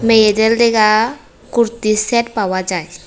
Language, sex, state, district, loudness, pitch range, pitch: Bengali, female, Tripura, West Tripura, -14 LUFS, 215-235 Hz, 220 Hz